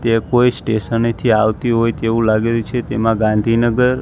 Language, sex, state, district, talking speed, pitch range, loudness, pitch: Gujarati, male, Gujarat, Gandhinagar, 165 wpm, 110-120 Hz, -16 LUFS, 115 Hz